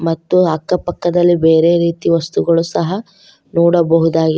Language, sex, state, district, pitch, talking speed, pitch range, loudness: Kannada, female, Karnataka, Koppal, 170 Hz, 110 wpm, 165-180 Hz, -14 LUFS